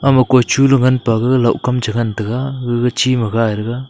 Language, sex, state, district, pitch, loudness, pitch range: Wancho, male, Arunachal Pradesh, Longding, 125 Hz, -15 LUFS, 115-130 Hz